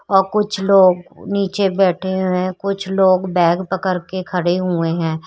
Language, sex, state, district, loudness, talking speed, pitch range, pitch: Hindi, female, Uttar Pradesh, Shamli, -17 LUFS, 170 wpm, 180-195 Hz, 185 Hz